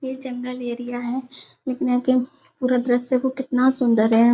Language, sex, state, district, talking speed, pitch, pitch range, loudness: Hindi, female, Uttar Pradesh, Hamirpur, 150 wpm, 250 Hz, 245-260 Hz, -22 LUFS